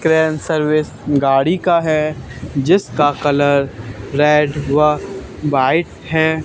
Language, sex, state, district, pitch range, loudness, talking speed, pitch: Hindi, male, Haryana, Charkhi Dadri, 140-160 Hz, -16 LUFS, 100 wpm, 150 Hz